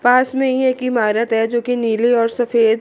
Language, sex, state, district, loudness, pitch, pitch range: Hindi, female, Chandigarh, Chandigarh, -17 LUFS, 240 Hz, 230-255 Hz